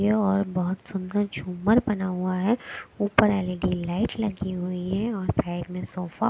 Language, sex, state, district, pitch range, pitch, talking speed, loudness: Hindi, female, Bihar, West Champaran, 180-210 Hz, 190 Hz, 170 wpm, -26 LUFS